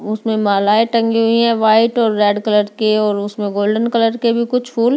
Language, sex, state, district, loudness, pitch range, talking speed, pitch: Hindi, female, Delhi, New Delhi, -15 LUFS, 210-230 Hz, 215 wpm, 220 Hz